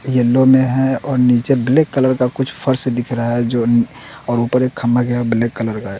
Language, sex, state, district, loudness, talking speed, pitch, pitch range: Hindi, male, Bihar, West Champaran, -16 LUFS, 240 wpm, 125 Hz, 120-130 Hz